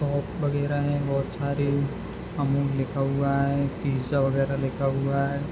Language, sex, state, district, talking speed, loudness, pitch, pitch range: Hindi, male, Bihar, Madhepura, 150 wpm, -26 LUFS, 140 Hz, 135-145 Hz